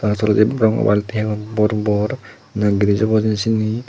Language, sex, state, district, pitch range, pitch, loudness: Chakma, male, Tripura, Dhalai, 105-110 Hz, 110 Hz, -18 LUFS